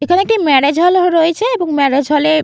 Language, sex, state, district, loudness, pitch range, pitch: Bengali, female, West Bengal, Jalpaiguri, -12 LUFS, 290-365 Hz, 325 Hz